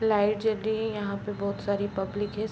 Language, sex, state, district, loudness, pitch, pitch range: Hindi, female, Uttar Pradesh, Varanasi, -29 LUFS, 205 Hz, 200-215 Hz